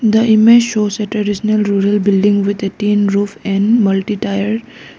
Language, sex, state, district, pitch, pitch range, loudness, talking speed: English, female, Arunachal Pradesh, Lower Dibang Valley, 205 Hz, 200-215 Hz, -14 LUFS, 180 wpm